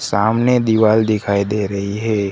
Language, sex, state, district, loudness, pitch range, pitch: Hindi, male, Gujarat, Gandhinagar, -16 LUFS, 100-110 Hz, 105 Hz